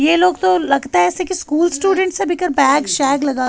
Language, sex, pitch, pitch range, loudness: Urdu, female, 325 Hz, 275-365 Hz, -15 LUFS